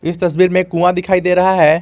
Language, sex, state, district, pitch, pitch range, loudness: Hindi, male, Jharkhand, Garhwa, 180 Hz, 170-185 Hz, -13 LUFS